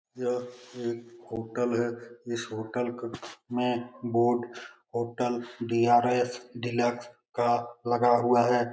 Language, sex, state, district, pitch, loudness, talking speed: Hindi, male, Bihar, Lakhisarai, 120 Hz, -29 LUFS, 105 wpm